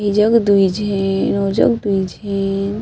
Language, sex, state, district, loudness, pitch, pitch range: Chhattisgarhi, female, Chhattisgarh, Sarguja, -16 LUFS, 200 Hz, 195-210 Hz